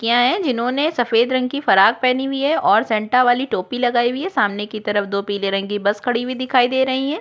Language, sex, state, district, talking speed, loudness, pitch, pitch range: Hindi, female, Chhattisgarh, Korba, 260 wpm, -18 LUFS, 245 Hz, 215-260 Hz